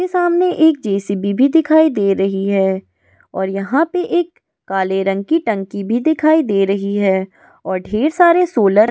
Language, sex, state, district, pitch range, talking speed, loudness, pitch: Hindi, female, Goa, North and South Goa, 195-315 Hz, 180 wpm, -16 LUFS, 205 Hz